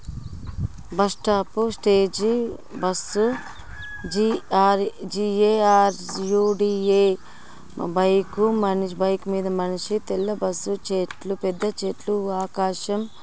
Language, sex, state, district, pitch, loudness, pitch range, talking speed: Telugu, female, Andhra Pradesh, Guntur, 195 Hz, -23 LUFS, 190-205 Hz, 70 wpm